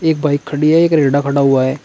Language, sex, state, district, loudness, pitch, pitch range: Hindi, male, Uttar Pradesh, Shamli, -13 LUFS, 145 Hz, 140-160 Hz